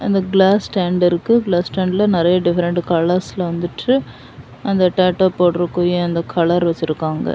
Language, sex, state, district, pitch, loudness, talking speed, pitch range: Tamil, female, Tamil Nadu, Kanyakumari, 180 Hz, -17 LUFS, 140 wpm, 175-190 Hz